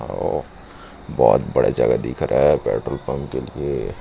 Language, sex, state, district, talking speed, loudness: Hindi, male, Chhattisgarh, Jashpur, 180 wpm, -20 LUFS